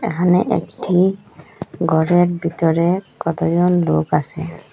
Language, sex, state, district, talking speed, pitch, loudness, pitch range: Bengali, female, Assam, Hailakandi, 90 wpm, 170 Hz, -17 LUFS, 165-180 Hz